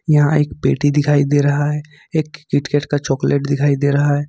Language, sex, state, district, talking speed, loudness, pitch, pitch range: Hindi, male, Jharkhand, Ranchi, 225 wpm, -17 LUFS, 145 Hz, 145-150 Hz